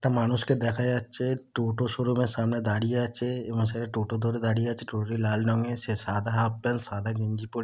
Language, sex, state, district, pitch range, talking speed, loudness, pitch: Bengali, male, West Bengal, Dakshin Dinajpur, 110-120 Hz, 235 wpm, -28 LUFS, 115 Hz